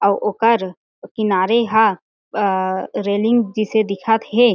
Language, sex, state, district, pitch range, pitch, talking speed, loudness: Chhattisgarhi, female, Chhattisgarh, Jashpur, 200-225 Hz, 215 Hz, 120 wpm, -18 LUFS